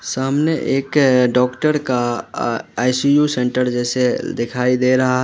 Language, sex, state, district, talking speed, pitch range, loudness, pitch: Hindi, male, Uttar Pradesh, Lalitpur, 115 wpm, 125-135 Hz, -17 LUFS, 125 Hz